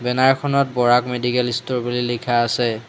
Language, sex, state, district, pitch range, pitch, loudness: Assamese, male, Assam, Hailakandi, 120-125 Hz, 125 Hz, -19 LUFS